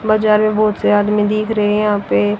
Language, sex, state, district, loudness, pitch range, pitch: Hindi, female, Haryana, Rohtak, -15 LUFS, 205-215 Hz, 210 Hz